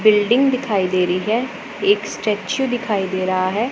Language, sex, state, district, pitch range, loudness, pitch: Hindi, female, Punjab, Pathankot, 185-255 Hz, -19 LUFS, 215 Hz